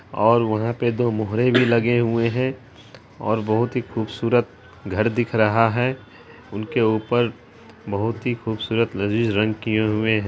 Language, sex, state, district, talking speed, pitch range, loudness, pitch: Hindi, female, Bihar, Araria, 155 wpm, 110-120 Hz, -21 LUFS, 115 Hz